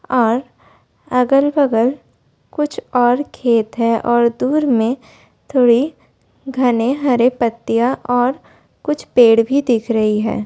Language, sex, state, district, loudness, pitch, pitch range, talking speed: Hindi, female, Uttar Pradesh, Budaun, -16 LUFS, 245 Hz, 235-270 Hz, 115 wpm